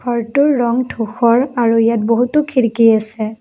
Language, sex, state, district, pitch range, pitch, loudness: Assamese, female, Assam, Kamrup Metropolitan, 225-250 Hz, 235 Hz, -15 LUFS